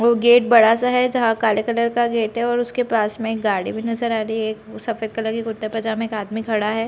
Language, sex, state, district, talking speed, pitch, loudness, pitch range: Hindi, female, Chhattisgarh, Bilaspur, 255 wpm, 225 Hz, -20 LUFS, 220-235 Hz